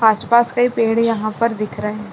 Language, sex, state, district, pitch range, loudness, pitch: Hindi, female, Chhattisgarh, Bilaspur, 215-230 Hz, -17 LUFS, 225 Hz